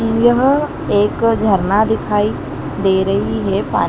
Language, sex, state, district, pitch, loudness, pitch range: Hindi, female, Madhya Pradesh, Dhar, 215 Hz, -16 LUFS, 200-230 Hz